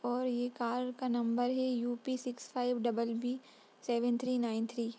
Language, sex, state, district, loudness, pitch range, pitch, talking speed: Hindi, female, Bihar, Jahanabad, -35 LUFS, 235-250 Hz, 245 Hz, 190 wpm